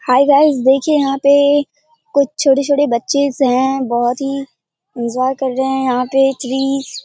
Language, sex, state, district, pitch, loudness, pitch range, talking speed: Hindi, female, Bihar, Purnia, 270 Hz, -15 LUFS, 260-285 Hz, 160 wpm